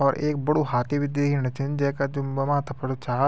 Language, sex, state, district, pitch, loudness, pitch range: Garhwali, male, Uttarakhand, Tehri Garhwal, 140 Hz, -25 LUFS, 135-145 Hz